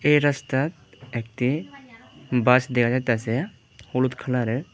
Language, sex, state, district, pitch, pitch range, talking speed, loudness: Bengali, male, Tripura, West Tripura, 125 Hz, 120-145 Hz, 100 wpm, -24 LUFS